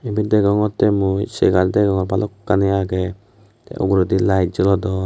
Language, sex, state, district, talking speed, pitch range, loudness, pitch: Chakma, male, Tripura, West Tripura, 130 wpm, 95-105 Hz, -18 LUFS, 100 Hz